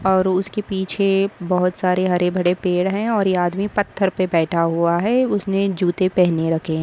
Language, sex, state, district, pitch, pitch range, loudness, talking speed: Hindi, female, Maharashtra, Sindhudurg, 185 Hz, 175-195 Hz, -19 LUFS, 195 wpm